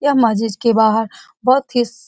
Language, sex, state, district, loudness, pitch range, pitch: Hindi, female, Bihar, Saran, -16 LUFS, 220-250 Hz, 230 Hz